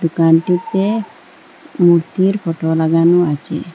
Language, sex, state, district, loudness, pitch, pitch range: Bengali, female, Assam, Hailakandi, -15 LUFS, 170 Hz, 165-185 Hz